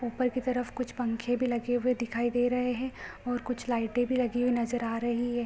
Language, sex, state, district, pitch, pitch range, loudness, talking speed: Hindi, female, Bihar, Supaul, 245 Hz, 240-250 Hz, -30 LUFS, 240 wpm